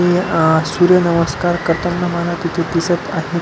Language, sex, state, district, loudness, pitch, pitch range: Marathi, male, Maharashtra, Pune, -16 LUFS, 170 Hz, 165-175 Hz